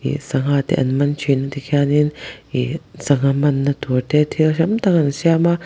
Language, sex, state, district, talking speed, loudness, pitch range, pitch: Mizo, male, Mizoram, Aizawl, 180 wpm, -18 LUFS, 140-155 Hz, 145 Hz